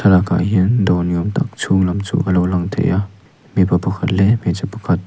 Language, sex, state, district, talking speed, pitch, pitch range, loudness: Mizo, male, Mizoram, Aizawl, 235 wpm, 95 Hz, 90-105 Hz, -17 LUFS